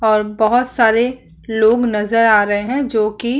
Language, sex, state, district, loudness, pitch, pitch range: Hindi, female, Bihar, Vaishali, -15 LUFS, 225 Hz, 215-240 Hz